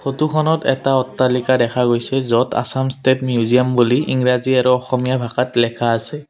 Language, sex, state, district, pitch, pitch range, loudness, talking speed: Assamese, male, Assam, Kamrup Metropolitan, 125 Hz, 120-130 Hz, -17 LUFS, 150 wpm